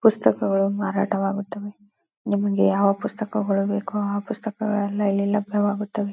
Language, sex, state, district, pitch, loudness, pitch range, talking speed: Kannada, female, Karnataka, Gulbarga, 205 Hz, -23 LUFS, 195-210 Hz, 110 wpm